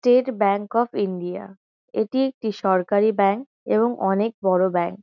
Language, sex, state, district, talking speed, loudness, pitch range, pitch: Bengali, female, West Bengal, Kolkata, 145 wpm, -22 LUFS, 195-230 Hz, 205 Hz